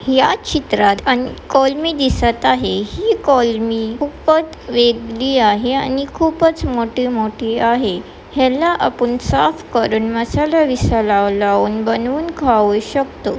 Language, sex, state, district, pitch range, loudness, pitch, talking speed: Marathi, female, Maharashtra, Pune, 225-280 Hz, -16 LUFS, 245 Hz, 110 wpm